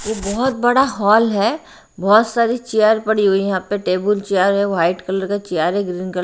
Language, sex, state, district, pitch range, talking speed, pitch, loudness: Hindi, female, Haryana, Rohtak, 190-220 Hz, 230 wpm, 205 Hz, -17 LUFS